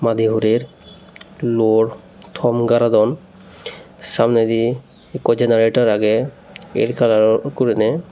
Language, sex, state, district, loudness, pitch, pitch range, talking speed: Chakma, male, Tripura, Unakoti, -17 LUFS, 115 Hz, 110-120 Hz, 90 wpm